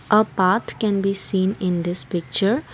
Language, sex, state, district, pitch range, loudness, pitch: English, female, Assam, Kamrup Metropolitan, 185-210 Hz, -20 LUFS, 195 Hz